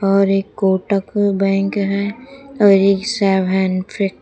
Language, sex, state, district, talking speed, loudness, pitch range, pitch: Hindi, female, Uttar Pradesh, Shamli, 115 wpm, -16 LUFS, 195-205 Hz, 195 Hz